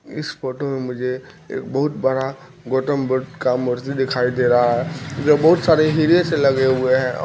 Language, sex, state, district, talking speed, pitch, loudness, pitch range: Maithili, male, Bihar, Kishanganj, 205 wpm, 135 Hz, -19 LUFS, 130-150 Hz